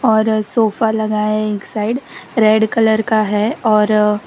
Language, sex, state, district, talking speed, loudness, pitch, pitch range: Hindi, female, Gujarat, Valsad, 155 wpm, -15 LUFS, 215 Hz, 210-220 Hz